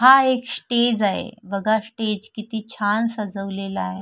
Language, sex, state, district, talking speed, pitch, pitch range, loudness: Marathi, female, Maharashtra, Sindhudurg, 150 wpm, 215 Hz, 200-235 Hz, -22 LUFS